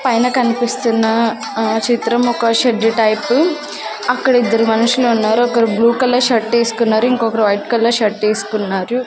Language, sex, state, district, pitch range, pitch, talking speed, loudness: Telugu, female, Andhra Pradesh, Sri Satya Sai, 220-245 Hz, 230 Hz, 130 wpm, -15 LUFS